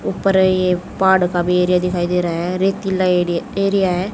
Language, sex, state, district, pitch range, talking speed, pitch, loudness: Hindi, female, Haryana, Jhajjar, 180-190 Hz, 205 wpm, 180 Hz, -17 LUFS